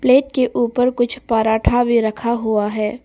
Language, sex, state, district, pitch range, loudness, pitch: Hindi, female, Arunachal Pradesh, Papum Pare, 220-250 Hz, -17 LUFS, 235 Hz